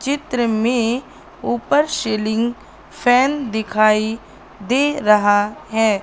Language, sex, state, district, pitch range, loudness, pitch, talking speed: Hindi, female, Madhya Pradesh, Katni, 215-260 Hz, -18 LUFS, 230 Hz, 90 wpm